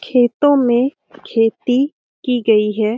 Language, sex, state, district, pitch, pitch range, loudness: Hindi, female, Bihar, Lakhisarai, 245 Hz, 225-265 Hz, -16 LUFS